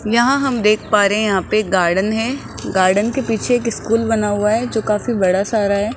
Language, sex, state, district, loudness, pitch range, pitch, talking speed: Hindi, female, Rajasthan, Jaipur, -17 LUFS, 200-230 Hz, 215 Hz, 240 wpm